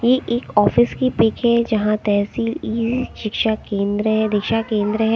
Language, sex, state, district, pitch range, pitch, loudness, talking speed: Hindi, female, Haryana, Rohtak, 215-235 Hz, 225 Hz, -19 LUFS, 160 wpm